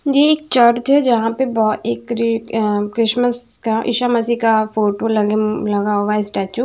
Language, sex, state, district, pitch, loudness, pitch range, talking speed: Hindi, female, Maharashtra, Washim, 225 Hz, -16 LUFS, 210-245 Hz, 205 wpm